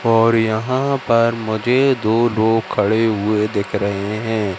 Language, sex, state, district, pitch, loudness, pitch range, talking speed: Hindi, male, Madhya Pradesh, Katni, 110 Hz, -17 LUFS, 105-115 Hz, 145 wpm